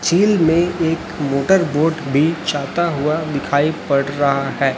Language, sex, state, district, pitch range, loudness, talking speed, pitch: Hindi, male, Chhattisgarh, Raipur, 140-165 Hz, -17 LUFS, 165 wpm, 155 Hz